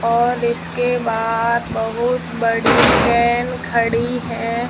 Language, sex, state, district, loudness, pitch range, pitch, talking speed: Hindi, female, Rajasthan, Jaisalmer, -17 LUFS, 230-240 Hz, 235 Hz, 90 wpm